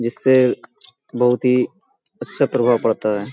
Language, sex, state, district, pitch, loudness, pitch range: Hindi, male, Uttar Pradesh, Hamirpur, 125 Hz, -18 LUFS, 120-125 Hz